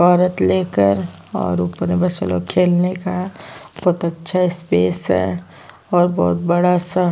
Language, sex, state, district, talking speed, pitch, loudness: Hindi, female, Chhattisgarh, Sukma, 150 wpm, 175 Hz, -18 LUFS